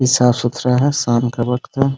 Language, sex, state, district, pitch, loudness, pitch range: Hindi, male, Bihar, Muzaffarpur, 125 Hz, -17 LUFS, 120-135 Hz